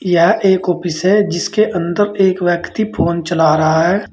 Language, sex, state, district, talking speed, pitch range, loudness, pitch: Hindi, male, Uttar Pradesh, Saharanpur, 175 wpm, 170-200 Hz, -14 LUFS, 180 Hz